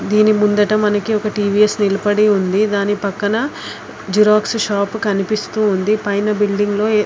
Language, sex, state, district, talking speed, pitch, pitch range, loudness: Telugu, female, Telangana, Karimnagar, 135 wpm, 210 Hz, 205-215 Hz, -16 LUFS